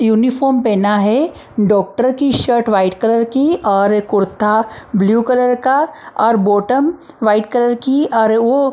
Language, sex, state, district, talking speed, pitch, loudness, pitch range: Hindi, female, Maharashtra, Mumbai Suburban, 150 wpm, 230 Hz, -14 LUFS, 210-265 Hz